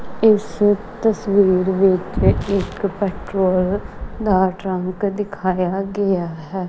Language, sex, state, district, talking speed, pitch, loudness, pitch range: Punjabi, female, Punjab, Kapurthala, 90 wpm, 195 Hz, -19 LUFS, 185-205 Hz